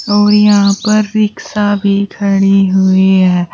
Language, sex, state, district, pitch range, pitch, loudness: Hindi, female, Uttar Pradesh, Shamli, 190-210 Hz, 200 Hz, -11 LUFS